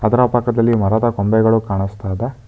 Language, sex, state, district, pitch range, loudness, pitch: Kannada, male, Karnataka, Bangalore, 100-120 Hz, -16 LUFS, 110 Hz